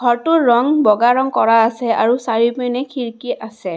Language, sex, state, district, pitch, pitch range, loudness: Assamese, female, Assam, Kamrup Metropolitan, 240 Hz, 230-255 Hz, -16 LUFS